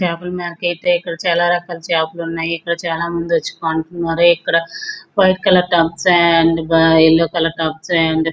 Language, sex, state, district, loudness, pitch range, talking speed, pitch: Telugu, male, Andhra Pradesh, Srikakulam, -16 LUFS, 165-175 Hz, 145 wpm, 170 Hz